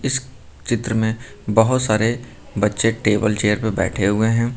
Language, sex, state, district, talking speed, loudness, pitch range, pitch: Hindi, male, Uttar Pradesh, Lucknow, 155 wpm, -19 LUFS, 105-120 Hz, 110 Hz